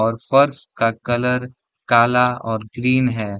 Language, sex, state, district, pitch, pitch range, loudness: Hindi, male, Bihar, Gaya, 120 Hz, 115-125 Hz, -18 LUFS